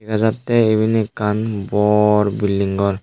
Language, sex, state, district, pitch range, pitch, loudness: Chakma, male, Tripura, Dhalai, 100-110 Hz, 105 Hz, -17 LUFS